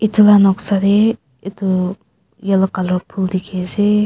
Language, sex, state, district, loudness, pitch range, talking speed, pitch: Nagamese, female, Nagaland, Kohima, -15 LUFS, 185-205 Hz, 150 wpm, 195 Hz